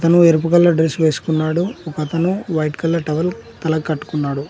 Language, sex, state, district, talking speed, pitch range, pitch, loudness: Telugu, male, Telangana, Mahabubabad, 160 wpm, 155-170 Hz, 160 Hz, -18 LUFS